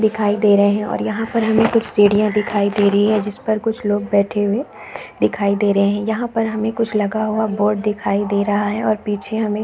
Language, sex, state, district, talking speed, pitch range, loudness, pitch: Hindi, female, Chhattisgarh, Bilaspur, 235 wpm, 205-220 Hz, -18 LUFS, 210 Hz